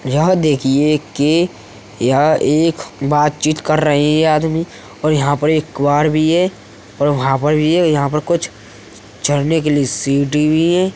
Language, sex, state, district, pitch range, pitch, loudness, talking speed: Hindi, male, Uttar Pradesh, Hamirpur, 140-155 Hz, 150 Hz, -15 LUFS, 170 wpm